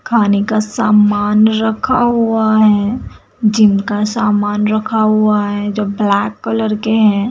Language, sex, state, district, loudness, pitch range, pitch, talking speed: Hindi, female, Bihar, Bhagalpur, -13 LUFS, 205-220 Hz, 215 Hz, 130 wpm